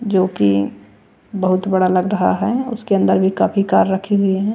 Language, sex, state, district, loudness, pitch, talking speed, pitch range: Hindi, female, Bihar, West Champaran, -17 LUFS, 190 Hz, 185 wpm, 185-205 Hz